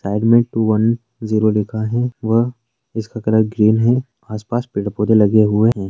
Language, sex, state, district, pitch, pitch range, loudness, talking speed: Hindi, male, Rajasthan, Nagaur, 110 Hz, 110-115 Hz, -17 LUFS, 185 wpm